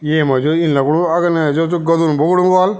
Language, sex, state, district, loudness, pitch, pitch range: Garhwali, male, Uttarakhand, Tehri Garhwal, -14 LUFS, 165 Hz, 155-175 Hz